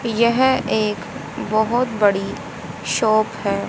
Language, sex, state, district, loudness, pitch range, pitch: Hindi, female, Haryana, Rohtak, -19 LUFS, 210-235 Hz, 220 Hz